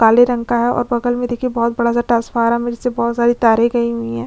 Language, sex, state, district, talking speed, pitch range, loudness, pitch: Hindi, female, Chhattisgarh, Kabirdham, 255 wpm, 235-240 Hz, -16 LUFS, 235 Hz